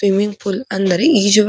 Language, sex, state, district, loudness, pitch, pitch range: Kannada, female, Karnataka, Dharwad, -16 LUFS, 200 Hz, 195-215 Hz